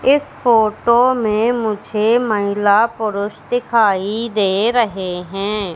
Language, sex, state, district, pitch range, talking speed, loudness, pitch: Hindi, female, Madhya Pradesh, Katni, 205-235 Hz, 105 wpm, -16 LUFS, 215 Hz